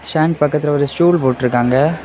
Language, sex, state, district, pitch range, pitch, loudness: Tamil, male, Tamil Nadu, Kanyakumari, 130-160 Hz, 150 Hz, -15 LUFS